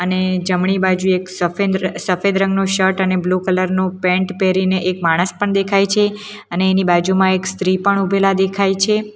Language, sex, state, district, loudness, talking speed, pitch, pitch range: Gujarati, female, Gujarat, Valsad, -16 LUFS, 175 wpm, 190 Hz, 185-195 Hz